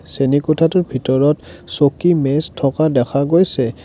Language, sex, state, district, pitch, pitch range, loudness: Assamese, male, Assam, Kamrup Metropolitan, 145 Hz, 135-155 Hz, -16 LUFS